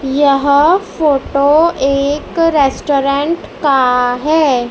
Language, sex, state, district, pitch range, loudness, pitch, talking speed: Hindi, male, Madhya Pradesh, Dhar, 275-310 Hz, -13 LUFS, 280 Hz, 75 wpm